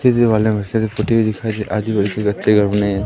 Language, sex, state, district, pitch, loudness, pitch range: Hindi, male, Madhya Pradesh, Umaria, 105 Hz, -17 LUFS, 105-110 Hz